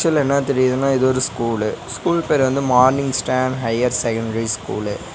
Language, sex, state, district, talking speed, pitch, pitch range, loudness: Tamil, male, Tamil Nadu, Nilgiris, 175 wpm, 130 Hz, 115-135 Hz, -19 LUFS